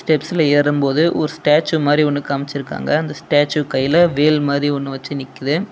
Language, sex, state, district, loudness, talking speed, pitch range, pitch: Tamil, male, Tamil Nadu, Nilgiris, -17 LUFS, 155 wpm, 140-155 Hz, 145 Hz